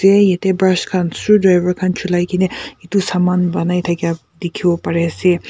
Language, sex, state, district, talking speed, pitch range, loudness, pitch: Nagamese, female, Nagaland, Kohima, 140 wpm, 175-185 Hz, -16 LUFS, 180 Hz